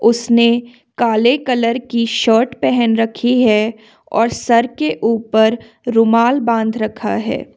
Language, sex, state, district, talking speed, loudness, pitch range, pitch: Hindi, female, Jharkhand, Ranchi, 125 wpm, -15 LUFS, 225-240 Hz, 230 Hz